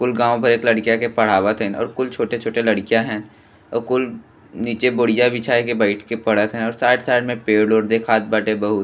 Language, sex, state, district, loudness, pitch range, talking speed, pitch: Bhojpuri, male, Uttar Pradesh, Gorakhpur, -18 LUFS, 110-120 Hz, 210 wpm, 115 Hz